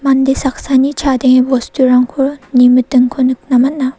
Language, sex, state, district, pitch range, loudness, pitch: Garo, female, Meghalaya, South Garo Hills, 255-270 Hz, -12 LUFS, 260 Hz